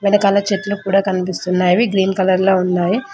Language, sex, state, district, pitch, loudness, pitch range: Telugu, female, Telangana, Mahabubabad, 195 Hz, -16 LUFS, 185-200 Hz